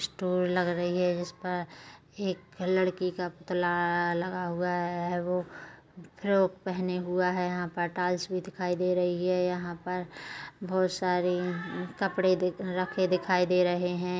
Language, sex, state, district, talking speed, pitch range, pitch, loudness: Hindi, female, Chhattisgarh, Kabirdham, 150 wpm, 175-185 Hz, 180 Hz, -30 LUFS